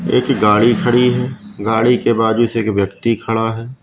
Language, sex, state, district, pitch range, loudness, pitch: Hindi, male, Madhya Pradesh, Katni, 110-120 Hz, -15 LUFS, 115 Hz